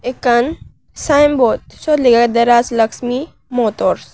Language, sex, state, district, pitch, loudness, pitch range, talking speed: Chakma, female, Tripura, West Tripura, 245 Hz, -14 LUFS, 235-275 Hz, 130 wpm